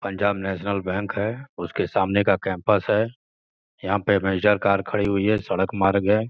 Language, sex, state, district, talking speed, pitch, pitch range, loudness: Hindi, male, Uttar Pradesh, Gorakhpur, 170 wpm, 100 Hz, 95-105 Hz, -23 LUFS